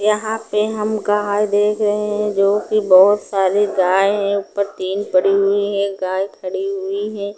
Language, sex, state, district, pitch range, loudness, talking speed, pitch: Hindi, female, Punjab, Pathankot, 195-210 Hz, -17 LUFS, 170 wpm, 200 Hz